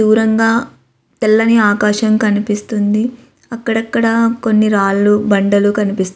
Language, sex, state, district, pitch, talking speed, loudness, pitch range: Telugu, female, Andhra Pradesh, Visakhapatnam, 215 Hz, 90 wpm, -13 LUFS, 205-225 Hz